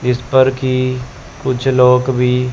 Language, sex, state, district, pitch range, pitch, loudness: Hindi, male, Chandigarh, Chandigarh, 125-130 Hz, 130 Hz, -14 LUFS